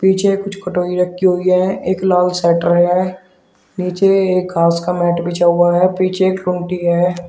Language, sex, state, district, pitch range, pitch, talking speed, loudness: Hindi, male, Uttar Pradesh, Shamli, 175-185 Hz, 180 Hz, 175 wpm, -15 LUFS